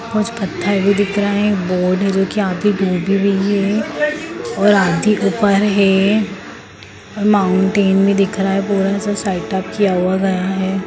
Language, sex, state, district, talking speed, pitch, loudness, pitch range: Hindi, female, Bihar, Lakhisarai, 140 wpm, 200 Hz, -16 LUFS, 195-205 Hz